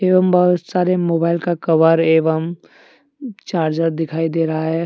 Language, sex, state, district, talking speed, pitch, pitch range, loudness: Hindi, male, Jharkhand, Deoghar, 150 wpm, 165 Hz, 160-180 Hz, -17 LUFS